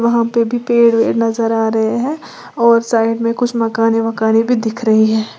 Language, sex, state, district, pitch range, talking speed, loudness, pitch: Hindi, female, Uttar Pradesh, Lalitpur, 225-235 Hz, 200 wpm, -14 LUFS, 230 Hz